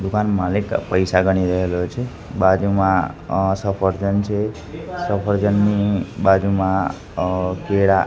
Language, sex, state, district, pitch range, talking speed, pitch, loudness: Gujarati, male, Gujarat, Gandhinagar, 95-100 Hz, 105 wpm, 95 Hz, -19 LUFS